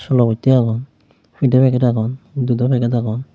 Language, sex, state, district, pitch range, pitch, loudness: Chakma, male, Tripura, Unakoti, 115-130 Hz, 125 Hz, -17 LUFS